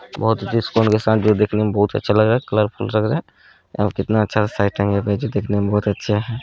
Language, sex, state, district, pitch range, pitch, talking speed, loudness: Bhojpuri, male, Bihar, Saran, 105-110 Hz, 105 Hz, 290 wpm, -19 LUFS